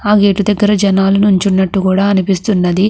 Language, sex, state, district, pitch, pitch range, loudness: Telugu, female, Andhra Pradesh, Krishna, 200 Hz, 190-205 Hz, -12 LUFS